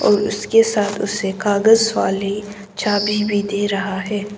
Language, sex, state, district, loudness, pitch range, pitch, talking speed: Hindi, female, Arunachal Pradesh, Papum Pare, -18 LUFS, 200-210 Hz, 205 Hz, 150 wpm